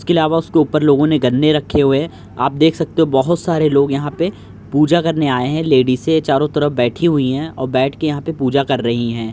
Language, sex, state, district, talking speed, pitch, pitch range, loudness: Hindi, male, Uttar Pradesh, Jyotiba Phule Nagar, 245 wpm, 145 Hz, 130-160 Hz, -15 LUFS